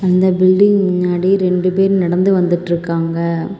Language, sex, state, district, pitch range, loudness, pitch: Tamil, female, Tamil Nadu, Kanyakumari, 175-190 Hz, -14 LUFS, 185 Hz